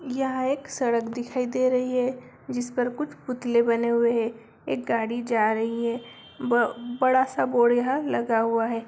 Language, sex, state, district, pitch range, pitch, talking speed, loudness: Hindi, male, Bihar, Darbhanga, 235-255 Hz, 240 Hz, 180 wpm, -25 LUFS